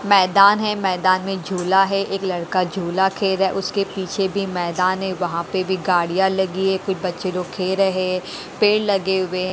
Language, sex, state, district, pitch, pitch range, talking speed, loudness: Hindi, female, Haryana, Rohtak, 190 Hz, 185-195 Hz, 210 wpm, -20 LUFS